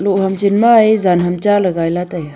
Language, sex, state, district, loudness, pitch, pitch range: Wancho, female, Arunachal Pradesh, Longding, -13 LUFS, 190 Hz, 175-205 Hz